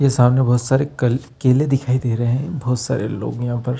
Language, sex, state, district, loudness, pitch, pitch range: Hindi, male, Chhattisgarh, Bilaspur, -19 LUFS, 125 Hz, 125-135 Hz